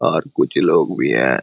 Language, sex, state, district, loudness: Hindi, male, Jharkhand, Jamtara, -16 LUFS